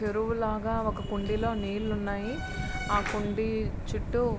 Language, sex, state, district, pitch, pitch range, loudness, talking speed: Telugu, male, Andhra Pradesh, Srikakulam, 215 Hz, 210-225 Hz, -31 LUFS, 125 wpm